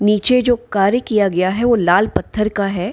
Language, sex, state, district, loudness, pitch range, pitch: Hindi, female, Bihar, Gaya, -16 LUFS, 195-230 Hz, 210 Hz